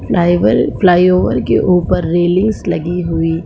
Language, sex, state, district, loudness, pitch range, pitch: Hindi, female, Jharkhand, Sahebganj, -13 LUFS, 175-180 Hz, 175 Hz